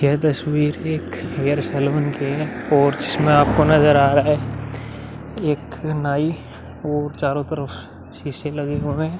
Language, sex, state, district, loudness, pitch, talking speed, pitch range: Hindi, male, Uttar Pradesh, Muzaffarnagar, -20 LUFS, 145 Hz, 150 wpm, 140-150 Hz